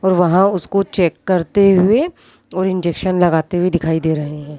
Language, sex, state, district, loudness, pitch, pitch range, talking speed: Hindi, female, Bihar, East Champaran, -16 LUFS, 180 Hz, 165-190 Hz, 180 wpm